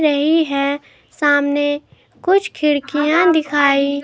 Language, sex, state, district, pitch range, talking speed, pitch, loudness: Hindi, female, Himachal Pradesh, Shimla, 285-310 Hz, 90 wpm, 290 Hz, -16 LUFS